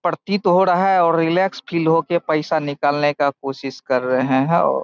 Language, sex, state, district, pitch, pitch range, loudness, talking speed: Hindi, male, Bihar, Saharsa, 160 Hz, 140-175 Hz, -18 LUFS, 185 wpm